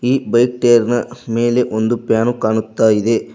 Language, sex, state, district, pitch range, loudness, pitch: Kannada, male, Karnataka, Koppal, 110-120 Hz, -15 LUFS, 120 Hz